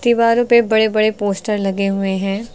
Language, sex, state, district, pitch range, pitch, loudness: Hindi, female, Uttar Pradesh, Lucknow, 195-230 Hz, 215 Hz, -16 LUFS